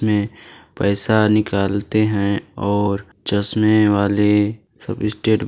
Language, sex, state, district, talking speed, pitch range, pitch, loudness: Hindi, male, Chhattisgarh, Balrampur, 110 wpm, 100-110 Hz, 105 Hz, -18 LUFS